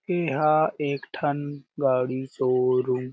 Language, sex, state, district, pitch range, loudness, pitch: Chhattisgarhi, male, Chhattisgarh, Jashpur, 130-150 Hz, -25 LUFS, 140 Hz